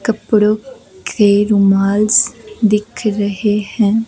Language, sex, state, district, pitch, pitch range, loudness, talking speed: Hindi, female, Himachal Pradesh, Shimla, 210 Hz, 205-220 Hz, -14 LUFS, 90 wpm